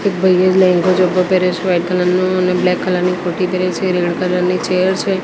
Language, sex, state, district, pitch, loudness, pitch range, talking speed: Gujarati, female, Gujarat, Gandhinagar, 180 Hz, -15 LUFS, 180-185 Hz, 250 wpm